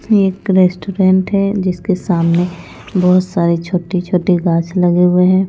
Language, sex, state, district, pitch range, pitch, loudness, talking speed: Hindi, female, Punjab, Pathankot, 175-190 Hz, 180 Hz, -14 LUFS, 140 wpm